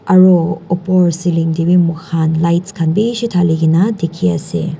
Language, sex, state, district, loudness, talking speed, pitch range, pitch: Nagamese, female, Nagaland, Dimapur, -14 LUFS, 140 wpm, 165-185 Hz, 170 Hz